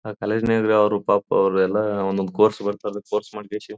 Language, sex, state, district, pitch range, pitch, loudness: Kannada, male, Karnataka, Bijapur, 100-105 Hz, 105 Hz, -21 LUFS